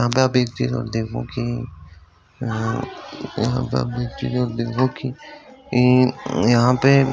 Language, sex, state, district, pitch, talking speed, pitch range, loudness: Hindi, male, Uttar Pradesh, Varanasi, 125 Hz, 175 wpm, 115-130 Hz, -21 LUFS